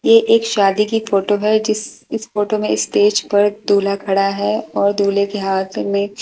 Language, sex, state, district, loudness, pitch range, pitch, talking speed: Hindi, female, Delhi, New Delhi, -17 LUFS, 200-215 Hz, 205 Hz, 205 wpm